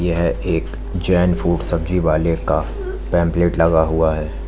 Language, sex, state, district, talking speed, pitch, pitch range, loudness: Hindi, male, Uttar Pradesh, Lalitpur, 145 wpm, 85 Hz, 80-85 Hz, -18 LUFS